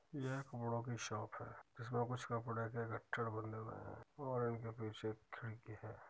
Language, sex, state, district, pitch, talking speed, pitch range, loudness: Hindi, male, Uttar Pradesh, Muzaffarnagar, 115 Hz, 205 wpm, 110-120 Hz, -46 LUFS